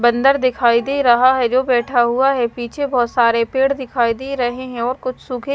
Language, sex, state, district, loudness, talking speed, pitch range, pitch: Hindi, female, Himachal Pradesh, Shimla, -17 LUFS, 215 wpm, 240-265 Hz, 250 Hz